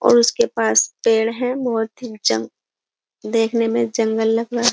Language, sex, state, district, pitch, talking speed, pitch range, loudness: Hindi, female, Uttar Pradesh, Jyotiba Phule Nagar, 230 Hz, 180 wpm, 225-240 Hz, -19 LUFS